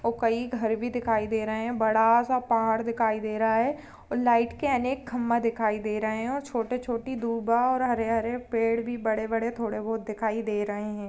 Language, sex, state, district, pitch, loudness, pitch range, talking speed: Hindi, female, Uttar Pradesh, Budaun, 230 Hz, -27 LUFS, 220-240 Hz, 205 wpm